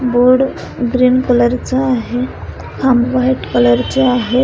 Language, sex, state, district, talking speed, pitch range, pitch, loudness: Marathi, female, Maharashtra, Solapur, 135 wpm, 240-255 Hz, 250 Hz, -14 LUFS